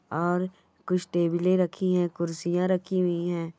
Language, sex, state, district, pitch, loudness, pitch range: Hindi, female, Bihar, Bhagalpur, 180 Hz, -27 LUFS, 170-185 Hz